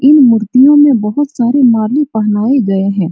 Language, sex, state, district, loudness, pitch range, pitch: Hindi, female, Bihar, Supaul, -10 LUFS, 215-275 Hz, 245 Hz